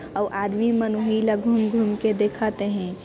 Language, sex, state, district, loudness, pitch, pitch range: Chhattisgarhi, female, Chhattisgarh, Sarguja, -23 LUFS, 215 Hz, 205-220 Hz